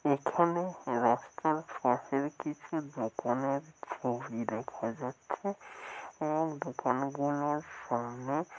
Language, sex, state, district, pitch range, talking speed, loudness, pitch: Bengali, male, West Bengal, North 24 Parganas, 125-155 Hz, 90 wpm, -34 LUFS, 140 Hz